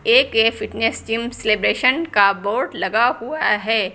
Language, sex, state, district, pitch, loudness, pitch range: Hindi, female, Uttar Pradesh, Lucknow, 225 Hz, -18 LUFS, 210-240 Hz